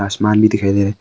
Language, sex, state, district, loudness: Hindi, male, Arunachal Pradesh, Longding, -14 LUFS